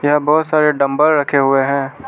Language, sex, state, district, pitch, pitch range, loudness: Hindi, male, Arunachal Pradesh, Lower Dibang Valley, 145 Hz, 140-150 Hz, -14 LUFS